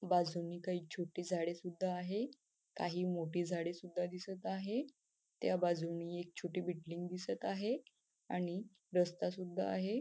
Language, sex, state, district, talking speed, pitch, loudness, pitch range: Marathi, female, Maharashtra, Nagpur, 140 wpm, 180 Hz, -40 LUFS, 175-190 Hz